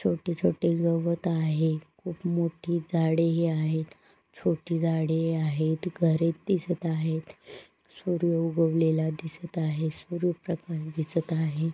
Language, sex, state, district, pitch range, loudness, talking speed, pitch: Marathi, female, Maharashtra, Pune, 160-170 Hz, -28 LUFS, 125 wpm, 165 Hz